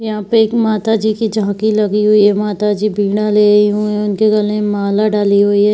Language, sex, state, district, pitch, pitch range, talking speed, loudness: Hindi, female, Bihar, Saharsa, 210 Hz, 205-215 Hz, 240 wpm, -13 LUFS